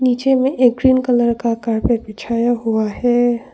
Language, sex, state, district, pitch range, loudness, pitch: Hindi, female, Arunachal Pradesh, Longding, 230-250 Hz, -16 LUFS, 240 Hz